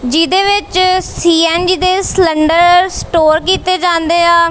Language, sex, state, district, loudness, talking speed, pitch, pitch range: Punjabi, female, Punjab, Kapurthala, -11 LUFS, 120 wpm, 350 Hz, 330-370 Hz